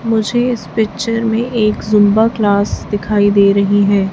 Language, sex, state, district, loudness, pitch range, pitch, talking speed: Hindi, female, Chhattisgarh, Raipur, -14 LUFS, 200-225 Hz, 210 Hz, 160 wpm